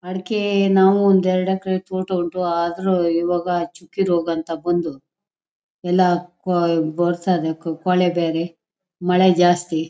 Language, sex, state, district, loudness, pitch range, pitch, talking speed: Kannada, female, Karnataka, Shimoga, -19 LUFS, 170-185 Hz, 175 Hz, 110 wpm